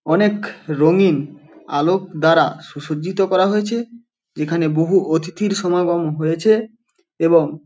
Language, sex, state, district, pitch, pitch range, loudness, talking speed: Bengali, male, West Bengal, Paschim Medinipur, 175 Hz, 160-205 Hz, -18 LUFS, 110 wpm